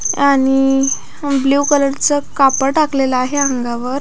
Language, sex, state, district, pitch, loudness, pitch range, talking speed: Marathi, female, Maharashtra, Pune, 275 Hz, -15 LUFS, 270-285 Hz, 120 wpm